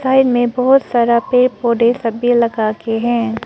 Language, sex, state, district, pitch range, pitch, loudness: Hindi, female, Arunachal Pradesh, Papum Pare, 230-250 Hz, 240 Hz, -14 LUFS